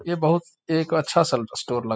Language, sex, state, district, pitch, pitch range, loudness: Hindi, male, Bihar, Muzaffarpur, 160 Hz, 145-170 Hz, -23 LUFS